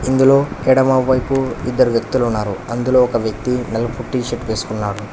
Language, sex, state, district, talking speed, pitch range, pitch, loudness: Telugu, male, Telangana, Hyderabad, 130 wpm, 110-130 Hz, 125 Hz, -17 LUFS